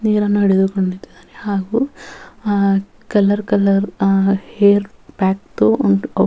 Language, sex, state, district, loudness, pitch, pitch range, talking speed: Kannada, female, Karnataka, Bellary, -17 LUFS, 200 Hz, 195-205 Hz, 95 wpm